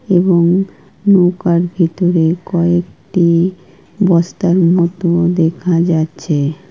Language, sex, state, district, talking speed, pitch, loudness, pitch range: Bengali, female, West Bengal, Kolkata, 70 wpm, 175 Hz, -14 LUFS, 170-185 Hz